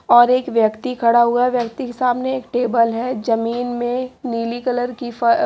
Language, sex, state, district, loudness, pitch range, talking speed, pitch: Hindi, female, Haryana, Jhajjar, -18 LUFS, 235-250 Hz, 185 wpm, 245 Hz